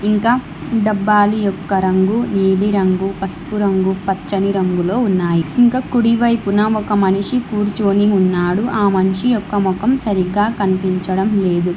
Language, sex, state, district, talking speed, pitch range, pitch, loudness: Telugu, female, Telangana, Hyderabad, 115 wpm, 190-215 Hz, 200 Hz, -16 LUFS